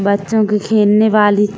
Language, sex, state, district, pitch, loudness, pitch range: Hindi, female, Bihar, Saran, 210 Hz, -13 LUFS, 205-215 Hz